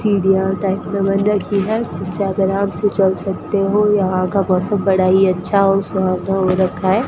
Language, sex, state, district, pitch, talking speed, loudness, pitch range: Hindi, female, Rajasthan, Bikaner, 195 Hz, 205 wpm, -17 LUFS, 190-200 Hz